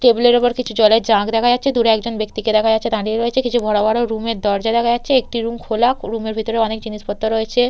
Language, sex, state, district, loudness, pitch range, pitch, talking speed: Bengali, female, West Bengal, Purulia, -17 LUFS, 220-240 Hz, 225 Hz, 250 wpm